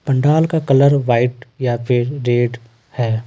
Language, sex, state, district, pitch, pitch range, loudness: Hindi, male, Jharkhand, Ranchi, 125 Hz, 120-140 Hz, -16 LUFS